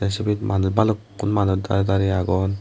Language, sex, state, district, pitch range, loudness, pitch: Chakma, male, Tripura, West Tripura, 95-105 Hz, -21 LUFS, 100 Hz